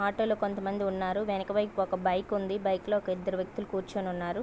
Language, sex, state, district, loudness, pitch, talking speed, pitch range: Telugu, female, Andhra Pradesh, Visakhapatnam, -31 LUFS, 195 Hz, 215 wpm, 185-205 Hz